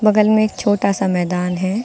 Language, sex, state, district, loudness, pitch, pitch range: Hindi, female, Uttar Pradesh, Lucknow, -17 LUFS, 200 Hz, 185-215 Hz